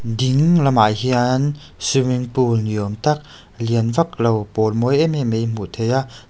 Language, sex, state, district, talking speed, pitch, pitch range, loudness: Mizo, male, Mizoram, Aizawl, 180 wpm, 120 Hz, 115-135 Hz, -18 LUFS